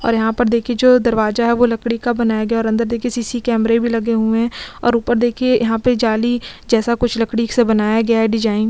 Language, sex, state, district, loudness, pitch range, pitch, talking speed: Hindi, female, Chhattisgarh, Kabirdham, -16 LUFS, 225-240 Hz, 230 Hz, 260 wpm